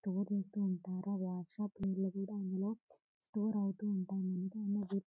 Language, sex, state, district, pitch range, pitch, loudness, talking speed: Telugu, female, Telangana, Karimnagar, 190-205 Hz, 195 Hz, -39 LUFS, 140 wpm